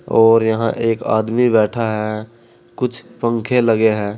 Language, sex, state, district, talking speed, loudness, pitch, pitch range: Hindi, male, Uttar Pradesh, Saharanpur, 145 wpm, -17 LUFS, 115 Hz, 110-120 Hz